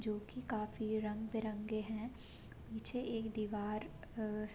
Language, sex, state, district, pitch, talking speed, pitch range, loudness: Hindi, female, Bihar, Sitamarhi, 220 Hz, 130 wpm, 215-225 Hz, -40 LUFS